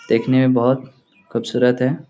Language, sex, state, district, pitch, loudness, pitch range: Hindi, male, Bihar, Lakhisarai, 130 Hz, -18 LUFS, 125-130 Hz